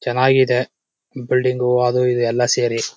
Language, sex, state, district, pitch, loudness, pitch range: Kannada, male, Karnataka, Chamarajanagar, 125 Hz, -17 LUFS, 120-125 Hz